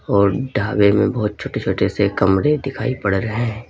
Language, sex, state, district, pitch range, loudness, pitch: Hindi, male, Uttar Pradesh, Lalitpur, 100-130 Hz, -18 LUFS, 105 Hz